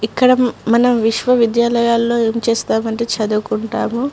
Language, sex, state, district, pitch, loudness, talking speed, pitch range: Telugu, female, Andhra Pradesh, Guntur, 235 Hz, -15 LUFS, 85 wpm, 225-240 Hz